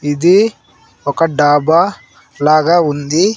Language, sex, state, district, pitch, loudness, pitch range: Telugu, female, Andhra Pradesh, Sri Satya Sai, 160 Hz, -13 LUFS, 145-175 Hz